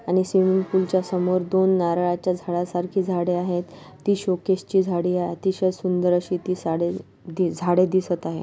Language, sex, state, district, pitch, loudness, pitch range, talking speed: Marathi, female, Maharashtra, Solapur, 180 Hz, -23 LUFS, 175-185 Hz, 150 wpm